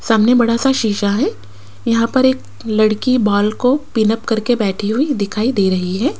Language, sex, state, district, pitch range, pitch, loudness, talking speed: Hindi, female, Rajasthan, Jaipur, 205-250 Hz, 225 Hz, -16 LUFS, 185 wpm